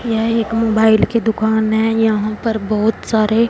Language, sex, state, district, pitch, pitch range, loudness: Hindi, female, Punjab, Fazilka, 220 Hz, 220-225 Hz, -16 LUFS